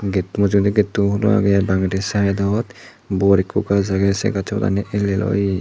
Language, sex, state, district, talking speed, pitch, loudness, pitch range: Chakma, male, Tripura, Dhalai, 215 wpm, 100 Hz, -18 LUFS, 95-105 Hz